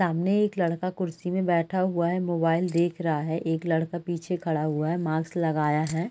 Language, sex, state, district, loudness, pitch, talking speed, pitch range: Hindi, female, Bihar, Gopalganj, -26 LUFS, 170 Hz, 205 wpm, 160-180 Hz